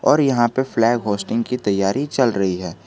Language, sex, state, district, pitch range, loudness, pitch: Hindi, male, Jharkhand, Garhwa, 100-130 Hz, -19 LUFS, 115 Hz